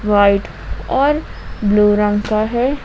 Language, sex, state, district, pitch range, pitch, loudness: Hindi, female, Jharkhand, Ranchi, 205-245 Hz, 210 Hz, -16 LUFS